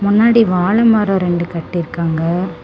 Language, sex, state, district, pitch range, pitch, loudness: Tamil, female, Tamil Nadu, Namakkal, 170-210 Hz, 180 Hz, -15 LUFS